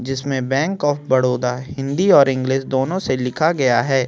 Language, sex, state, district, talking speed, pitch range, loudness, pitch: Hindi, male, Chhattisgarh, Kabirdham, 190 wpm, 130-145 Hz, -18 LUFS, 135 Hz